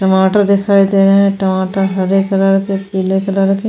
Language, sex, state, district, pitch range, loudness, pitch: Hindi, female, Goa, North and South Goa, 190-195 Hz, -13 LUFS, 195 Hz